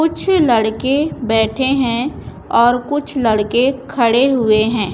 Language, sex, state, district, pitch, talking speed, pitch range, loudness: Hindi, female, Chhattisgarh, Raipur, 245 Hz, 120 wpm, 225-275 Hz, -15 LUFS